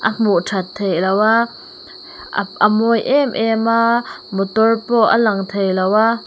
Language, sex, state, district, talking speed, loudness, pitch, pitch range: Mizo, female, Mizoram, Aizawl, 170 wpm, -16 LUFS, 220 Hz, 195-230 Hz